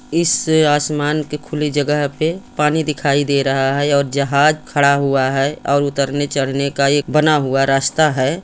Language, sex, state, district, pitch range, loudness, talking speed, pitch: Hindi, male, Jharkhand, Sahebganj, 140-150 Hz, -16 LUFS, 185 wpm, 145 Hz